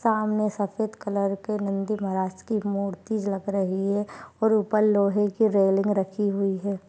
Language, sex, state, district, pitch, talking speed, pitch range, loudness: Hindi, female, Maharashtra, Nagpur, 200 Hz, 165 wpm, 195-215 Hz, -25 LUFS